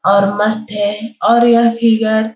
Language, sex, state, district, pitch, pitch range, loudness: Hindi, female, Bihar, Jahanabad, 220 Hz, 210-230 Hz, -13 LUFS